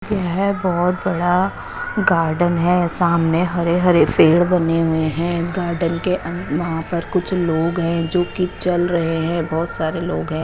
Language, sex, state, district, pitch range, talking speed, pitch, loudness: Hindi, female, Chandigarh, Chandigarh, 165-180 Hz, 165 wpm, 175 Hz, -18 LUFS